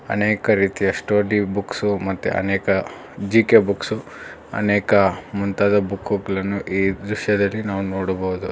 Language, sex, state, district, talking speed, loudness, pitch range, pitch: Kannada, male, Karnataka, Bangalore, 115 wpm, -20 LUFS, 95-105 Hz, 100 Hz